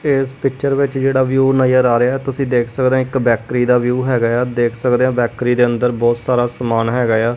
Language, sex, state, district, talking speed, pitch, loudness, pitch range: Punjabi, female, Punjab, Kapurthala, 245 wpm, 125 Hz, -16 LUFS, 120-130 Hz